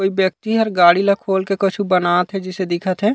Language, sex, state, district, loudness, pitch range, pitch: Chhattisgarhi, male, Chhattisgarh, Raigarh, -17 LUFS, 185-195 Hz, 190 Hz